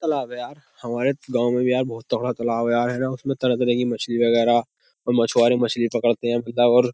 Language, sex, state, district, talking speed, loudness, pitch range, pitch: Hindi, male, Uttar Pradesh, Jyotiba Phule Nagar, 235 wpm, -21 LUFS, 120-125 Hz, 120 Hz